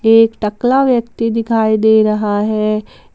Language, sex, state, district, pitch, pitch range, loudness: Hindi, female, Jharkhand, Palamu, 220 Hz, 215-230 Hz, -14 LUFS